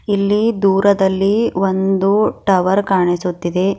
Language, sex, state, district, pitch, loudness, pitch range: Kannada, female, Karnataka, Bidar, 195 Hz, -15 LUFS, 190-205 Hz